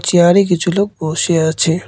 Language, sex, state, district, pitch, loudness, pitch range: Bengali, male, West Bengal, Cooch Behar, 175 Hz, -14 LUFS, 160-180 Hz